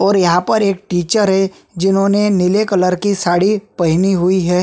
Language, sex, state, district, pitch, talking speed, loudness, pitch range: Hindi, male, Chhattisgarh, Sukma, 190 Hz, 180 wpm, -14 LUFS, 180-200 Hz